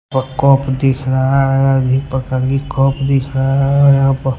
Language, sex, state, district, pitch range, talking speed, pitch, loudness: Hindi, male, Punjab, Pathankot, 130-135 Hz, 135 wpm, 135 Hz, -14 LUFS